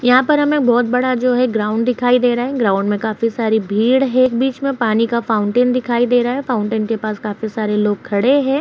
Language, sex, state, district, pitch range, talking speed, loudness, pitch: Hindi, female, Uttar Pradesh, Jyotiba Phule Nagar, 220-255 Hz, 250 wpm, -16 LUFS, 240 Hz